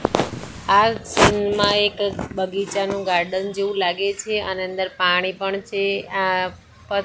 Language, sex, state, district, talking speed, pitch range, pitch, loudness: Gujarati, female, Gujarat, Gandhinagar, 135 wpm, 185-200 Hz, 195 Hz, -21 LUFS